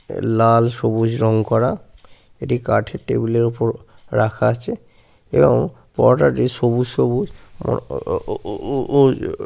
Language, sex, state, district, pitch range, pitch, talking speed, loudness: Bengali, male, West Bengal, Paschim Medinipur, 115-130 Hz, 115 Hz, 135 wpm, -18 LUFS